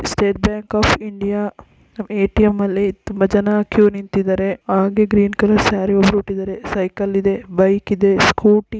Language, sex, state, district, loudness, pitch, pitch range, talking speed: Kannada, female, Karnataka, Belgaum, -17 LUFS, 200 Hz, 195-210 Hz, 145 wpm